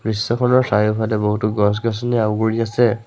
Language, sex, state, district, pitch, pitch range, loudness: Assamese, male, Assam, Sonitpur, 110 Hz, 105-120 Hz, -18 LUFS